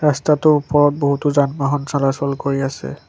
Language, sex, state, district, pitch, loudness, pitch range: Assamese, male, Assam, Sonitpur, 145 Hz, -17 LUFS, 140-145 Hz